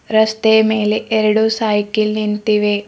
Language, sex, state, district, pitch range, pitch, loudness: Kannada, female, Karnataka, Bidar, 210-220 Hz, 215 Hz, -15 LUFS